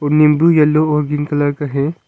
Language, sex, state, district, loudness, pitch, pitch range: Hindi, male, Arunachal Pradesh, Longding, -14 LUFS, 150 Hz, 145-155 Hz